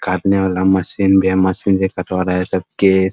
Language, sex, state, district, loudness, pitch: Hindi, male, Bihar, Muzaffarpur, -16 LUFS, 95 Hz